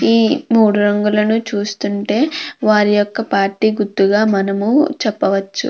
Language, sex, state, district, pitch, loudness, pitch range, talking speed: Telugu, female, Andhra Pradesh, Krishna, 210 Hz, -15 LUFS, 205-225 Hz, 105 wpm